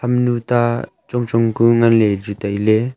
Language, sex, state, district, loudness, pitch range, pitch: Wancho, male, Arunachal Pradesh, Longding, -17 LUFS, 110-120 Hz, 115 Hz